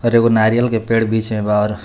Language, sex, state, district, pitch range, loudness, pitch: Bhojpuri, male, Jharkhand, Palamu, 105-115 Hz, -15 LUFS, 110 Hz